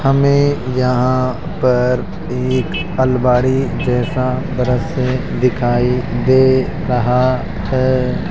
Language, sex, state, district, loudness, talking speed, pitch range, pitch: Hindi, male, Rajasthan, Jaipur, -16 LUFS, 80 wpm, 125-130 Hz, 130 Hz